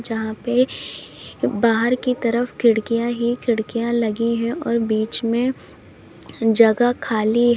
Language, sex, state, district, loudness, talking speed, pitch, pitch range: Hindi, female, Uttar Pradesh, Lalitpur, -19 LUFS, 120 wpm, 235 Hz, 225-240 Hz